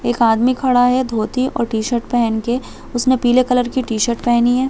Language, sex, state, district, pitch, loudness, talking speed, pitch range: Hindi, female, Chhattisgarh, Balrampur, 245 Hz, -17 LUFS, 255 wpm, 235-255 Hz